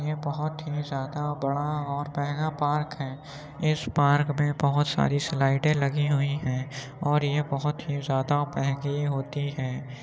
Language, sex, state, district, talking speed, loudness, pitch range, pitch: Hindi, male, Uttar Pradesh, Muzaffarnagar, 155 wpm, -27 LUFS, 140-150 Hz, 145 Hz